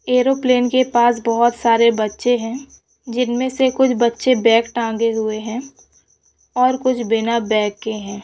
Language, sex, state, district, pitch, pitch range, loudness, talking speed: Hindi, female, West Bengal, Jalpaiguri, 235 Hz, 225-250 Hz, -17 LUFS, 155 wpm